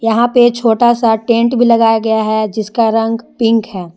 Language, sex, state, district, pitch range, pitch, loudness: Hindi, female, Jharkhand, Garhwa, 220-235 Hz, 225 Hz, -12 LUFS